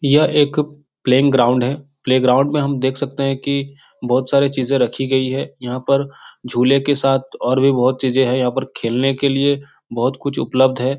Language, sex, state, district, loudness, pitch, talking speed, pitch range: Hindi, male, Bihar, Supaul, -17 LUFS, 135 Hz, 200 wpm, 130-140 Hz